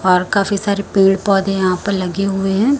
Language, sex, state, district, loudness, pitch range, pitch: Hindi, female, Chhattisgarh, Raipur, -16 LUFS, 190-200 Hz, 195 Hz